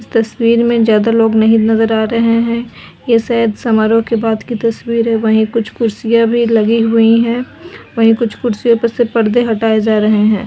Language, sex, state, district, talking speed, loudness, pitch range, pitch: Hindi, female, Uttar Pradesh, Budaun, 200 wpm, -12 LUFS, 220-235 Hz, 230 Hz